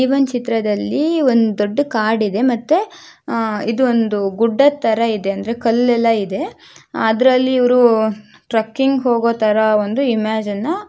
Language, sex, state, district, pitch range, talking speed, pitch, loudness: Kannada, female, Karnataka, Shimoga, 220-255 Hz, 125 wpm, 230 Hz, -16 LUFS